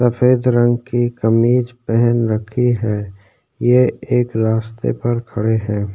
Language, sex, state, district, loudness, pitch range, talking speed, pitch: Hindi, male, Uttarakhand, Tehri Garhwal, -17 LUFS, 110-120 Hz, 130 wpm, 120 Hz